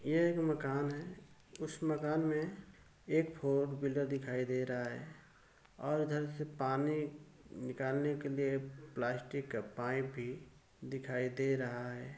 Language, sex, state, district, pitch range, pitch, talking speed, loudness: Hindi, male, Uttar Pradesh, Ghazipur, 130-150 Hz, 140 Hz, 145 wpm, -38 LUFS